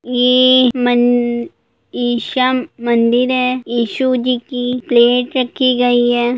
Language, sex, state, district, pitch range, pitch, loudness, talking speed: Hindi, female, Bihar, Gopalganj, 240-255 Hz, 245 Hz, -14 LUFS, 120 wpm